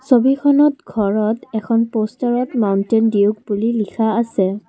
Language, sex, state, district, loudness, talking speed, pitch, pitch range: Assamese, female, Assam, Kamrup Metropolitan, -17 LUFS, 115 wpm, 225 Hz, 210-245 Hz